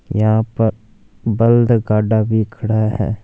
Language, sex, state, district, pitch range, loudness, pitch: Hindi, male, Punjab, Fazilka, 110-115 Hz, -16 LUFS, 110 Hz